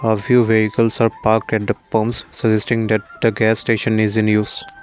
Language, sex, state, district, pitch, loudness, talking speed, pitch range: English, male, Assam, Kamrup Metropolitan, 110 Hz, -17 LUFS, 200 wpm, 110-115 Hz